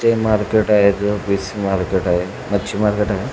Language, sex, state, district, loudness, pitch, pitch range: Marathi, male, Maharashtra, Sindhudurg, -18 LUFS, 100 Hz, 95-105 Hz